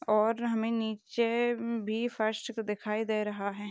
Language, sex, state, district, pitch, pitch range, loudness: Hindi, female, Maharashtra, Aurangabad, 220 Hz, 215-230 Hz, -31 LUFS